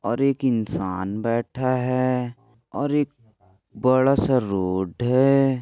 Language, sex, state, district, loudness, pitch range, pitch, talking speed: Hindi, male, Maharashtra, Aurangabad, -22 LUFS, 105-130 Hz, 125 Hz, 115 wpm